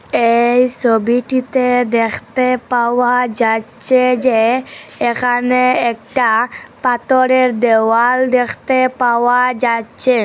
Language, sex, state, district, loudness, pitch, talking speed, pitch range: Bengali, female, Assam, Hailakandi, -14 LUFS, 245 Hz, 75 wpm, 235-255 Hz